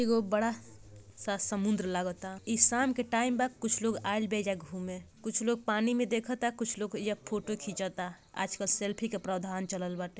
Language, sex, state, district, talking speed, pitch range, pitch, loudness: Bhojpuri, female, Bihar, Gopalganj, 190 wpm, 190-230 Hz, 210 Hz, -32 LUFS